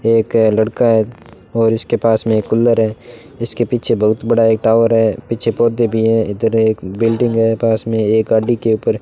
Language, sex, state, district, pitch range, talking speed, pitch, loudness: Hindi, male, Rajasthan, Bikaner, 110-115 Hz, 205 wpm, 115 Hz, -15 LUFS